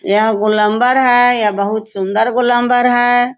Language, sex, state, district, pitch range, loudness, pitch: Hindi, female, Bihar, Sitamarhi, 210-245 Hz, -13 LUFS, 240 Hz